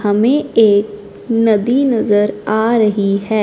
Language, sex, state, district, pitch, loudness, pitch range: Hindi, male, Punjab, Fazilka, 215 Hz, -14 LUFS, 205-230 Hz